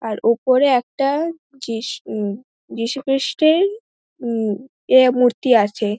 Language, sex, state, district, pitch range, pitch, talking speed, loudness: Bengali, female, West Bengal, Dakshin Dinajpur, 225-275 Hz, 255 Hz, 100 wpm, -18 LUFS